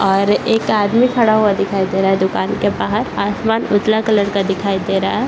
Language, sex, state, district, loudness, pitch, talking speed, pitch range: Hindi, male, Bihar, Saran, -16 LUFS, 205 Hz, 225 wpm, 195-220 Hz